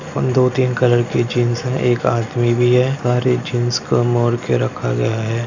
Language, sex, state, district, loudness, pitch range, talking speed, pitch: Hindi, male, Maharashtra, Dhule, -17 LUFS, 120-125 Hz, 195 wpm, 120 Hz